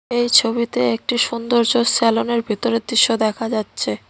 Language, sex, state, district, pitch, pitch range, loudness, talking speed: Bengali, female, West Bengal, Cooch Behar, 230 Hz, 225-240 Hz, -18 LUFS, 130 wpm